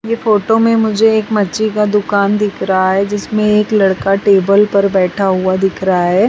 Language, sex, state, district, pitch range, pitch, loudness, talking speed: Hindi, female, Bihar, West Champaran, 195-215 Hz, 205 Hz, -13 LUFS, 200 wpm